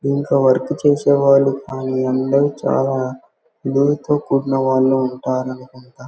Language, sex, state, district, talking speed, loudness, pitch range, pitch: Telugu, male, Andhra Pradesh, Guntur, 110 wpm, -17 LUFS, 130-140 Hz, 135 Hz